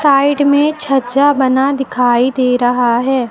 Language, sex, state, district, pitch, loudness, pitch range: Hindi, female, Uttar Pradesh, Lucknow, 265 Hz, -13 LUFS, 250-285 Hz